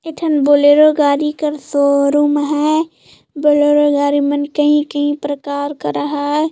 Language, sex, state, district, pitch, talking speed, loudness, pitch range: Chhattisgarhi, female, Chhattisgarh, Jashpur, 290 Hz, 145 wpm, -14 LUFS, 285-300 Hz